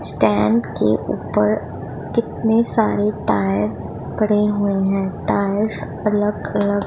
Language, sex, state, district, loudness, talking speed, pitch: Hindi, female, Punjab, Pathankot, -19 LUFS, 105 wpm, 145 Hz